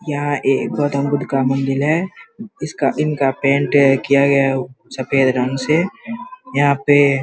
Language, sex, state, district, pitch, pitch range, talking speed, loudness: Hindi, male, Bihar, Vaishali, 140 Hz, 135-150 Hz, 160 wpm, -17 LUFS